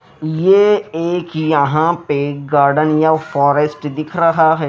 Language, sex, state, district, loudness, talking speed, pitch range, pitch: Hindi, male, Himachal Pradesh, Shimla, -15 LUFS, 130 wpm, 145-165 Hz, 155 Hz